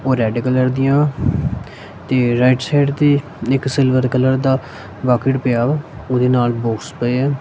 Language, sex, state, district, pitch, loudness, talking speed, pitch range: Punjabi, male, Punjab, Kapurthala, 130 Hz, -17 LUFS, 160 wpm, 120-135 Hz